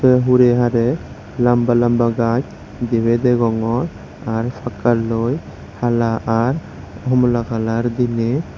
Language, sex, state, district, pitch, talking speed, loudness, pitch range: Chakma, male, Tripura, West Tripura, 120 Hz, 110 wpm, -18 LUFS, 115-125 Hz